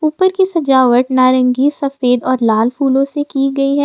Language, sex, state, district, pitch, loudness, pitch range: Hindi, female, Jharkhand, Ranchi, 275 Hz, -13 LUFS, 255-290 Hz